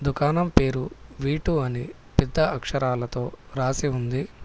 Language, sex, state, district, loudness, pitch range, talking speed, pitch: Telugu, male, Telangana, Hyderabad, -25 LUFS, 125-150 Hz, 120 wpm, 135 Hz